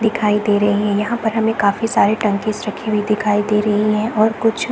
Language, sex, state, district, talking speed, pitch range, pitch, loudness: Hindi, female, Jharkhand, Jamtara, 240 wpm, 210-220 Hz, 215 Hz, -17 LUFS